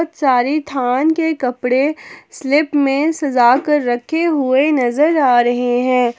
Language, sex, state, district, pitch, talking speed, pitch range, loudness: Hindi, female, Jharkhand, Palamu, 275 Hz, 135 wpm, 245-300 Hz, -15 LUFS